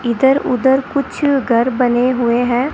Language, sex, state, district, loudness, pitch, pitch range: Hindi, female, Rajasthan, Bikaner, -15 LUFS, 255 Hz, 240-270 Hz